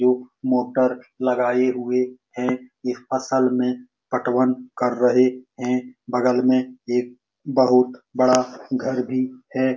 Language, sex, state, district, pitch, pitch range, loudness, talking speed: Hindi, male, Bihar, Supaul, 125 Hz, 125-130 Hz, -22 LUFS, 130 wpm